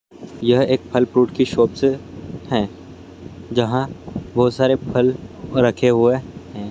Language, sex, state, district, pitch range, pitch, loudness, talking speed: Hindi, male, Bihar, Purnia, 100-130 Hz, 120 Hz, -19 LUFS, 135 wpm